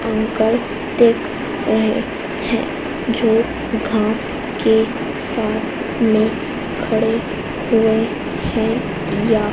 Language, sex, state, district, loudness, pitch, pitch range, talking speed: Hindi, female, Madhya Pradesh, Dhar, -19 LUFS, 225 Hz, 220-240 Hz, 80 wpm